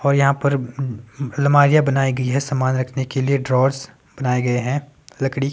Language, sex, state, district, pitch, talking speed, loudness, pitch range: Hindi, male, Himachal Pradesh, Shimla, 135 Hz, 175 wpm, -19 LUFS, 130-140 Hz